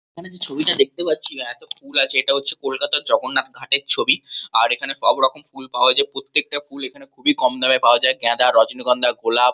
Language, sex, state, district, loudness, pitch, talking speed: Bengali, male, West Bengal, Kolkata, -16 LUFS, 145 Hz, 190 wpm